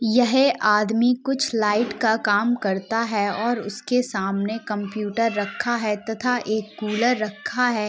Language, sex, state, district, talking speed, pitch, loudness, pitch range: Hindi, female, Uttar Pradesh, Jalaun, 145 wpm, 220 Hz, -22 LUFS, 210-240 Hz